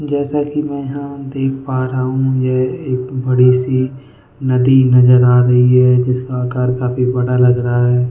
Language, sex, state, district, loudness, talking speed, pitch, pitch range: Hindi, male, Goa, North and South Goa, -14 LUFS, 175 wpm, 130 Hz, 125-135 Hz